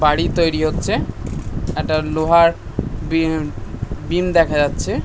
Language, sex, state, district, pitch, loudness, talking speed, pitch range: Bengali, male, West Bengal, North 24 Parganas, 155 Hz, -19 LUFS, 120 wpm, 150-165 Hz